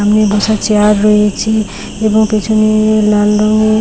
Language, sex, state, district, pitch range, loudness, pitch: Bengali, female, West Bengal, Paschim Medinipur, 210-215 Hz, -11 LUFS, 215 Hz